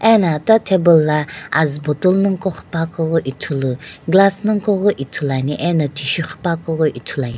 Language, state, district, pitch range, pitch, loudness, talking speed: Sumi, Nagaland, Dimapur, 150-190 Hz, 165 Hz, -17 LUFS, 120 wpm